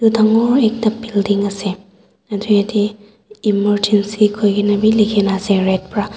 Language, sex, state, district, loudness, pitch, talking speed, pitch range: Nagamese, female, Nagaland, Dimapur, -16 LUFS, 205 Hz, 125 wpm, 200-215 Hz